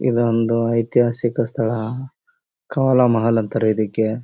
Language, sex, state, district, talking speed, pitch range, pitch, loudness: Kannada, male, Karnataka, Bellary, 100 wpm, 115-125 Hz, 115 Hz, -19 LUFS